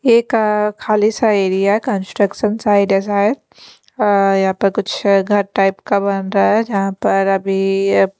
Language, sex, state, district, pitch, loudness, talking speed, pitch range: Hindi, female, Punjab, Pathankot, 200 Hz, -15 LUFS, 160 wpm, 195-210 Hz